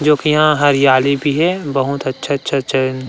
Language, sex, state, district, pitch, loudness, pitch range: Chhattisgarhi, male, Chhattisgarh, Rajnandgaon, 140 Hz, -15 LUFS, 135-150 Hz